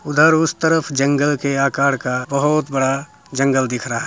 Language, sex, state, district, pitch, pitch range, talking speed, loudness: Hindi, male, Bihar, Muzaffarpur, 140 Hz, 135-150 Hz, 190 wpm, -17 LUFS